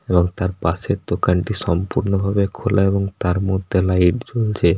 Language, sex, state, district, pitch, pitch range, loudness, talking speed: Bengali, male, West Bengal, Paschim Medinipur, 95 Hz, 90-100 Hz, -19 LUFS, 150 wpm